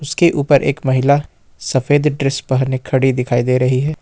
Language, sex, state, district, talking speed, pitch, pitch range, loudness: Hindi, male, Jharkhand, Ranchi, 180 wpm, 135 Hz, 130-145 Hz, -16 LUFS